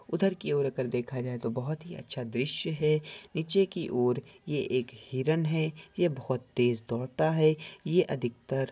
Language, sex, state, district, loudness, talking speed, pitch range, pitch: Hindi, male, Andhra Pradesh, Krishna, -30 LUFS, 160 wpm, 125-160 Hz, 140 Hz